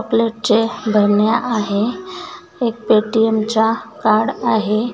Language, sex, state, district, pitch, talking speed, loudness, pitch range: Marathi, female, Maharashtra, Nagpur, 225 Hz, 110 wpm, -17 LUFS, 215-235 Hz